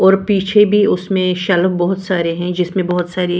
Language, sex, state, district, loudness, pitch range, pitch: Hindi, female, Maharashtra, Washim, -15 LUFS, 180-195 Hz, 185 Hz